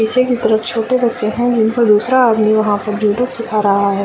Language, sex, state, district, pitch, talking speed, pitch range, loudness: Hindi, female, Chhattisgarh, Raigarh, 220 Hz, 195 wpm, 210-240 Hz, -14 LUFS